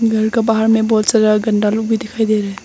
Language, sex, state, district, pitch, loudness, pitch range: Hindi, female, Arunachal Pradesh, Longding, 220 Hz, -15 LUFS, 215-225 Hz